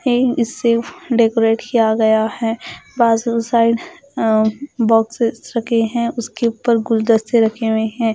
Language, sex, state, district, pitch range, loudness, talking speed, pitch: Hindi, female, Punjab, Fazilka, 225-235 Hz, -17 LUFS, 125 wpm, 230 Hz